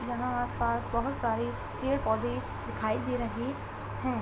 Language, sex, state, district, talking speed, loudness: Hindi, female, Uttar Pradesh, Hamirpur, 140 wpm, -32 LUFS